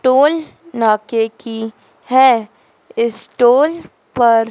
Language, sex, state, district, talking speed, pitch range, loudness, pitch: Hindi, female, Madhya Pradesh, Dhar, 95 wpm, 225-260 Hz, -15 LUFS, 235 Hz